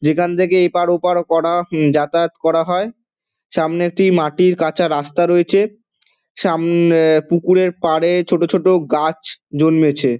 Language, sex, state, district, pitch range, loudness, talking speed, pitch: Bengali, male, West Bengal, Dakshin Dinajpur, 160-180 Hz, -16 LUFS, 135 wpm, 170 Hz